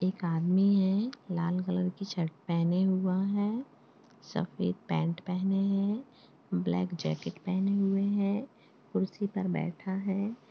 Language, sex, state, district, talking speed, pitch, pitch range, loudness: Hindi, male, Uttarakhand, Tehri Garhwal, 130 wpm, 190 Hz, 180-200 Hz, -31 LUFS